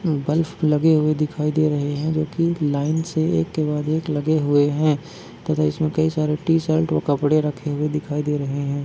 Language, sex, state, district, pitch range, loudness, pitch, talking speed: Hindi, male, Chhattisgarh, Bastar, 145-155 Hz, -21 LUFS, 150 Hz, 210 wpm